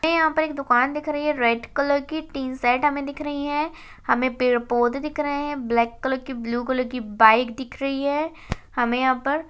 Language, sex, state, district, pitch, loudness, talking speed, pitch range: Hindi, female, Uttarakhand, Uttarkashi, 270 Hz, -23 LUFS, 235 wpm, 245-295 Hz